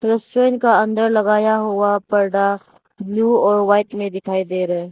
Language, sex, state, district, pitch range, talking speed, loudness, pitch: Hindi, female, Arunachal Pradesh, Lower Dibang Valley, 200-220 Hz, 170 wpm, -17 LUFS, 205 Hz